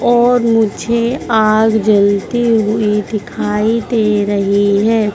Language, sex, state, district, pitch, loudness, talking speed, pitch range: Hindi, female, Madhya Pradesh, Dhar, 215 Hz, -13 LUFS, 105 wpm, 210-230 Hz